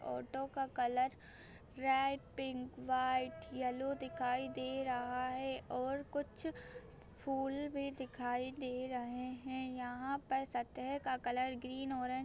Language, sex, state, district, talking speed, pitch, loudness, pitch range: Hindi, female, Jharkhand, Sahebganj, 125 wpm, 260 Hz, -40 LUFS, 250-270 Hz